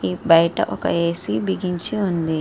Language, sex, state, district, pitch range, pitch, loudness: Telugu, female, Andhra Pradesh, Srikakulam, 160-190 Hz, 170 Hz, -20 LUFS